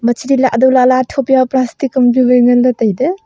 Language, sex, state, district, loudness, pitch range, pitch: Wancho, female, Arunachal Pradesh, Longding, -12 LUFS, 245-260 Hz, 255 Hz